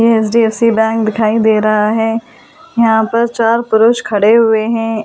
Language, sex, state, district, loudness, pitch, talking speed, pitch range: Hindi, female, Delhi, New Delhi, -12 LUFS, 225 Hz, 165 wpm, 220-230 Hz